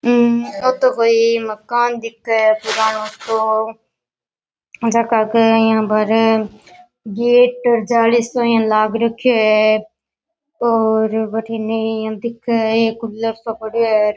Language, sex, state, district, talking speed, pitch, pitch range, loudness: Rajasthani, female, Rajasthan, Nagaur, 125 wpm, 225 Hz, 220-235 Hz, -16 LUFS